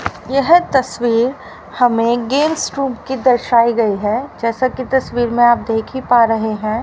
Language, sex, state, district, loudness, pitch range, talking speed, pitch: Hindi, female, Haryana, Rohtak, -15 LUFS, 230-265 Hz, 160 wpm, 240 Hz